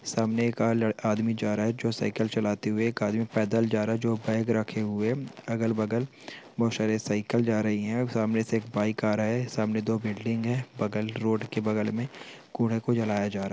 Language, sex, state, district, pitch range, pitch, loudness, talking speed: Hindi, male, Bihar, Sitamarhi, 110-115 Hz, 110 Hz, -28 LUFS, 210 wpm